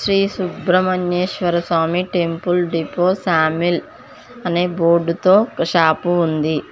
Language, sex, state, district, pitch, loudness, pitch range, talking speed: Telugu, female, Telangana, Mahabubabad, 175 Hz, -17 LUFS, 170-185 Hz, 115 wpm